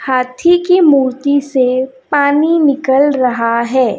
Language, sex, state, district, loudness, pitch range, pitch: Hindi, female, Chhattisgarh, Raipur, -12 LUFS, 255-290 Hz, 270 Hz